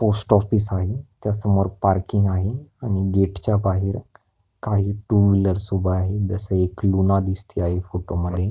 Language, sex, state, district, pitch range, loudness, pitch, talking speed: Marathi, male, Maharashtra, Pune, 95-105 Hz, -22 LUFS, 100 Hz, 155 wpm